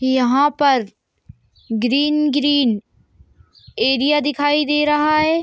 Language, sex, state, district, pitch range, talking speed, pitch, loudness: Hindi, female, Jharkhand, Sahebganj, 260-295 Hz, 100 wpm, 290 Hz, -17 LUFS